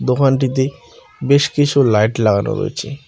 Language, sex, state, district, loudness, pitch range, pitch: Bengali, male, West Bengal, Cooch Behar, -16 LUFS, 115-140 Hz, 135 Hz